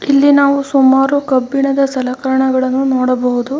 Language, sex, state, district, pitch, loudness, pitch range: Kannada, female, Karnataka, Mysore, 270 Hz, -13 LUFS, 260-280 Hz